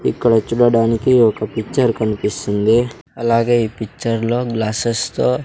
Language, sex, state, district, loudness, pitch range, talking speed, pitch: Telugu, male, Andhra Pradesh, Sri Satya Sai, -17 LUFS, 110-120 Hz, 130 wpm, 115 Hz